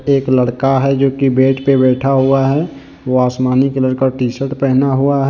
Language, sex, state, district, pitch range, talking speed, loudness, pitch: Hindi, male, Jharkhand, Deoghar, 130-135 Hz, 205 wpm, -14 LUFS, 135 Hz